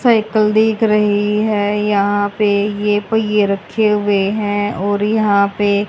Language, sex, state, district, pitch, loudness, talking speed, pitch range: Hindi, female, Haryana, Rohtak, 205 Hz, -15 LUFS, 145 wpm, 205-215 Hz